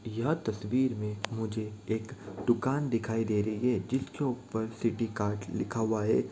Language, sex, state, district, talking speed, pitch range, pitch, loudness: Maithili, male, Bihar, Supaul, 150 wpm, 110-120 Hz, 110 Hz, -32 LUFS